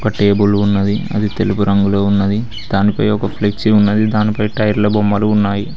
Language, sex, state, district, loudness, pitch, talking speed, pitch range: Telugu, male, Telangana, Mahabubabad, -15 LUFS, 105 Hz, 155 wpm, 100-105 Hz